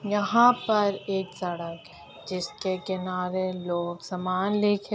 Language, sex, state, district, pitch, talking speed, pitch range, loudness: Hindi, female, Uttar Pradesh, Etah, 185 Hz, 135 wpm, 180-205 Hz, -27 LUFS